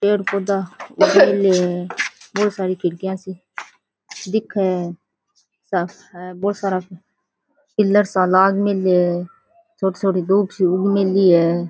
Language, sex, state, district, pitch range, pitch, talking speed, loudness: Rajasthani, female, Rajasthan, Churu, 180-200 Hz, 190 Hz, 140 wpm, -18 LUFS